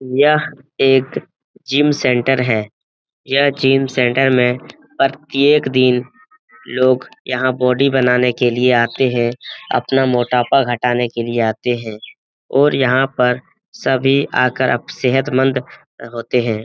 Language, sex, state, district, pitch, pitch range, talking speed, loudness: Hindi, male, Bihar, Jamui, 130 Hz, 125-135 Hz, 125 wpm, -16 LUFS